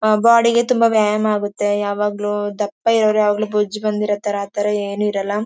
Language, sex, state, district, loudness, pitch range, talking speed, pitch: Kannada, female, Karnataka, Mysore, -18 LUFS, 205-215 Hz, 165 wpm, 210 Hz